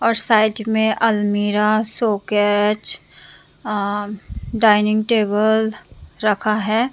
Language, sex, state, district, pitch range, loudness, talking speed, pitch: Hindi, female, Tripura, Dhalai, 210-220 Hz, -17 LUFS, 85 wpm, 215 Hz